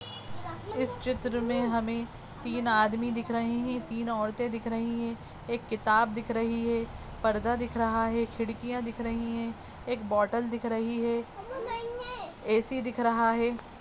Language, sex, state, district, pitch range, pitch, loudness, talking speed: Hindi, female, Uttarakhand, Tehri Garhwal, 230-240 Hz, 235 Hz, -31 LUFS, 155 wpm